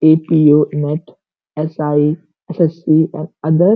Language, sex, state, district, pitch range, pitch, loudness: Hindi, female, Uttar Pradesh, Gorakhpur, 150-165 Hz, 155 Hz, -15 LUFS